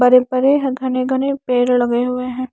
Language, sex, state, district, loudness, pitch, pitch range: Hindi, female, Haryana, Charkhi Dadri, -17 LUFS, 255 Hz, 250-265 Hz